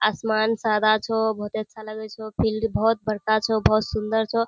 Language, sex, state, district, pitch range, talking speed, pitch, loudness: Hindi, female, Bihar, Kishanganj, 215-220 Hz, 215 wpm, 220 Hz, -23 LUFS